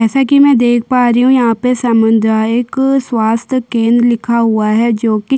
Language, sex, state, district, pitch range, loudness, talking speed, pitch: Hindi, female, Chhattisgarh, Sukma, 225-255 Hz, -12 LUFS, 200 wpm, 235 Hz